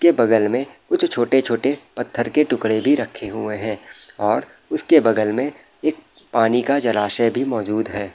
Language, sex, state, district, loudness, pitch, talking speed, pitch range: Hindi, male, Bihar, Saharsa, -20 LUFS, 120 Hz, 170 wpm, 110-140 Hz